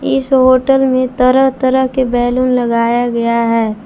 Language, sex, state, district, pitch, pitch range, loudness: Hindi, female, Jharkhand, Palamu, 255 Hz, 235-260 Hz, -12 LUFS